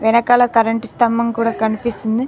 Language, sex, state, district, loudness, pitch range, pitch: Telugu, female, Telangana, Mahabubabad, -16 LUFS, 225-235 Hz, 230 Hz